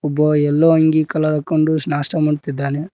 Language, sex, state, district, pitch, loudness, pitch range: Kannada, male, Karnataka, Koppal, 150 Hz, -16 LUFS, 145-155 Hz